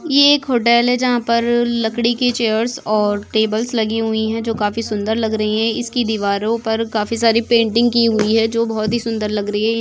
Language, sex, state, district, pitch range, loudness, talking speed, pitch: Hindi, female, Goa, North and South Goa, 220-235 Hz, -17 LUFS, 220 wpm, 225 Hz